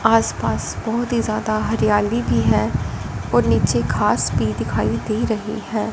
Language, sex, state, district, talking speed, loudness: Hindi, female, Punjab, Fazilka, 160 wpm, -20 LUFS